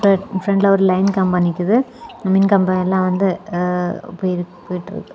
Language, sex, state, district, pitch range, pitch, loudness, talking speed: Tamil, female, Tamil Nadu, Kanyakumari, 180-200 Hz, 190 Hz, -17 LUFS, 130 wpm